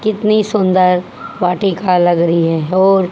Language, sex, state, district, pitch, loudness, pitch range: Hindi, female, Haryana, Jhajjar, 185 Hz, -13 LUFS, 175-195 Hz